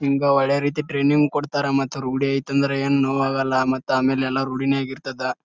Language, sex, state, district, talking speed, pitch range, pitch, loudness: Kannada, male, Karnataka, Bijapur, 165 wpm, 135-140 Hz, 135 Hz, -21 LUFS